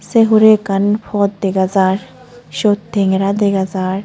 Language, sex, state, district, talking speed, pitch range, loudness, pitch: Chakma, female, Tripura, Unakoti, 150 wpm, 190-210 Hz, -14 LUFS, 195 Hz